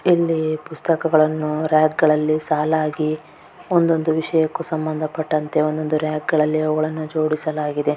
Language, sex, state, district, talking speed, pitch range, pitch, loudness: Kannada, female, Karnataka, Dakshina Kannada, 100 wpm, 155-160 Hz, 155 Hz, -20 LUFS